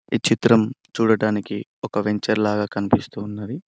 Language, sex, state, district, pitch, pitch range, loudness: Telugu, male, Telangana, Mahabubabad, 110 Hz, 105-115 Hz, -21 LUFS